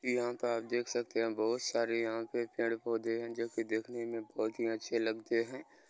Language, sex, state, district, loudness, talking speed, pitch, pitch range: Hindi, male, Bihar, Araria, -36 LUFS, 215 wpm, 115 Hz, 115-120 Hz